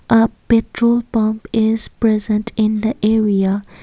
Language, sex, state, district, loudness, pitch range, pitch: English, female, Assam, Kamrup Metropolitan, -17 LUFS, 215-225 Hz, 220 Hz